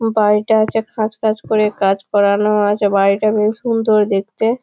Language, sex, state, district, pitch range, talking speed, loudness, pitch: Bengali, female, West Bengal, Malda, 205-220 Hz, 170 wpm, -15 LUFS, 215 Hz